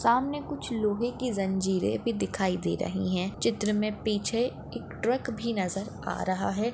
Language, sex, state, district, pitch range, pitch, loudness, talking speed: Hindi, female, Maharashtra, Nagpur, 190-235 Hz, 210 Hz, -29 LUFS, 180 wpm